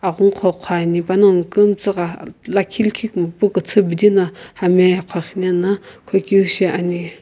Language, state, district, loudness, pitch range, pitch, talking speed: Sumi, Nagaland, Kohima, -17 LUFS, 175-200 Hz, 185 Hz, 140 wpm